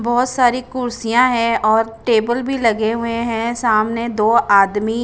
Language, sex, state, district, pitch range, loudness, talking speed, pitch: Hindi, female, Chandigarh, Chandigarh, 220-240 Hz, -16 LUFS, 155 wpm, 230 Hz